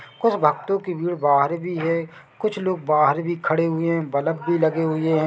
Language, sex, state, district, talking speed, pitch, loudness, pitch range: Hindi, male, Chhattisgarh, Bilaspur, 205 wpm, 165 Hz, -22 LUFS, 155-175 Hz